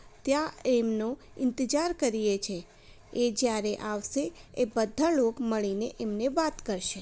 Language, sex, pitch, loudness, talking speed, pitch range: Gujarati, female, 235 Hz, -29 LUFS, 130 wpm, 210-270 Hz